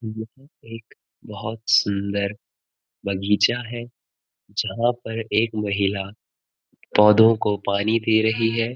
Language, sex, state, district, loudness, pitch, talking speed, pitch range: Hindi, male, Uttarakhand, Uttarkashi, -21 LUFS, 110 Hz, 110 wpm, 100-115 Hz